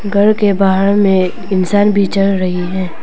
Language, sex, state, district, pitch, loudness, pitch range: Hindi, female, Arunachal Pradesh, Papum Pare, 195 Hz, -13 LUFS, 185-200 Hz